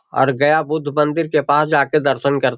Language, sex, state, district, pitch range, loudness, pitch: Hindi, male, Bihar, Jahanabad, 140-155 Hz, -16 LUFS, 145 Hz